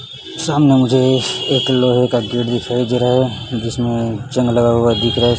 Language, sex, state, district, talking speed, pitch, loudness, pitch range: Hindi, male, Chhattisgarh, Raipur, 180 wpm, 125 Hz, -15 LUFS, 120-130 Hz